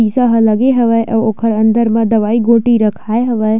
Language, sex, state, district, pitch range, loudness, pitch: Chhattisgarhi, female, Chhattisgarh, Sukma, 220-235 Hz, -12 LUFS, 225 Hz